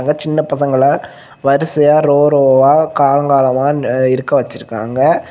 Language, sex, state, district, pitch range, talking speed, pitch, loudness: Tamil, male, Tamil Nadu, Kanyakumari, 135-150 Hz, 115 wpm, 140 Hz, -13 LUFS